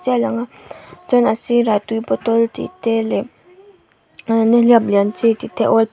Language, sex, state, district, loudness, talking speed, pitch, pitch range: Mizo, female, Mizoram, Aizawl, -17 LUFS, 170 wpm, 230 Hz, 225-240 Hz